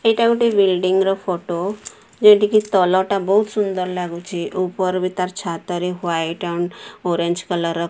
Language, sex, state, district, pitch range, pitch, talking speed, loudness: Odia, female, Odisha, Sambalpur, 175-200 Hz, 185 Hz, 160 wpm, -19 LUFS